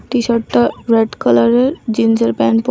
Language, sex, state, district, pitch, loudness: Bengali, female, Tripura, West Tripura, 225 Hz, -14 LUFS